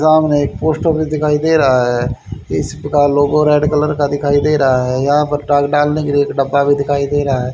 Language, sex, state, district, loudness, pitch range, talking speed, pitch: Hindi, male, Haryana, Charkhi Dadri, -14 LUFS, 135-150 Hz, 240 wpm, 145 Hz